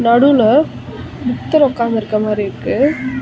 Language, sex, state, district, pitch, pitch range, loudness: Tamil, female, Tamil Nadu, Chennai, 245 Hz, 220-280 Hz, -15 LUFS